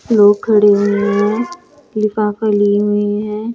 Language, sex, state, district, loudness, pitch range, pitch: Hindi, female, Chandigarh, Chandigarh, -14 LUFS, 205-215 Hz, 210 Hz